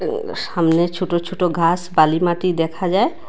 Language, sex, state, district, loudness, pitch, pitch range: Bengali, female, Assam, Hailakandi, -19 LUFS, 175 Hz, 170-185 Hz